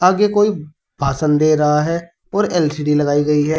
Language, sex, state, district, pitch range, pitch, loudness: Hindi, male, Uttar Pradesh, Saharanpur, 150-175 Hz, 155 Hz, -16 LUFS